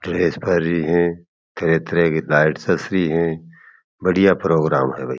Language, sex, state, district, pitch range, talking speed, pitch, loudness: Marwari, male, Rajasthan, Churu, 80-85 Hz, 160 wpm, 85 Hz, -18 LUFS